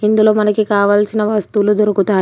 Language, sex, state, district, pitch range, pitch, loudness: Telugu, female, Telangana, Komaram Bheem, 205-215 Hz, 210 Hz, -14 LUFS